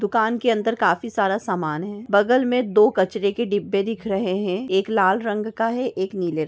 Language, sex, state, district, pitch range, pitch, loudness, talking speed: Hindi, female, Uttar Pradesh, Deoria, 190-225 Hz, 205 Hz, -21 LUFS, 220 wpm